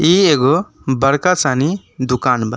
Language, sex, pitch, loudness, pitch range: Bhojpuri, male, 135 Hz, -15 LUFS, 130-165 Hz